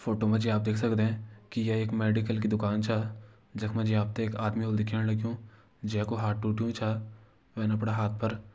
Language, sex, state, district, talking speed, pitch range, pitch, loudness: Garhwali, male, Uttarakhand, Uttarkashi, 230 wpm, 105-110 Hz, 110 Hz, -30 LUFS